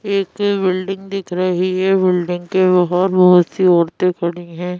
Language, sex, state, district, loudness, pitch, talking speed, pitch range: Hindi, female, Madhya Pradesh, Bhopal, -16 LUFS, 185 Hz, 160 wpm, 180-190 Hz